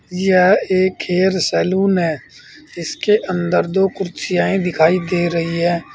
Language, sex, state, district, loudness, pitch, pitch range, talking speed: Hindi, male, Uttar Pradesh, Saharanpur, -17 LUFS, 180 Hz, 170-190 Hz, 130 wpm